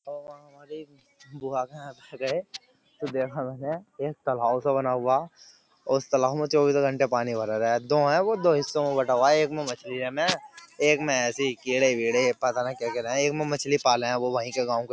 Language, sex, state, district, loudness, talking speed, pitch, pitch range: Hindi, male, Uttar Pradesh, Jyotiba Phule Nagar, -25 LUFS, 210 wpm, 135 Hz, 125-145 Hz